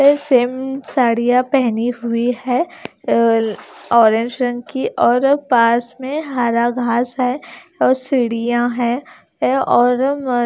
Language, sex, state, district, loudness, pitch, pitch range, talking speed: Hindi, female, Himachal Pradesh, Shimla, -17 LUFS, 245 Hz, 235-260 Hz, 115 wpm